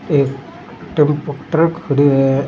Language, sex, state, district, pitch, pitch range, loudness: Rajasthani, male, Rajasthan, Churu, 145 Hz, 140-165 Hz, -16 LUFS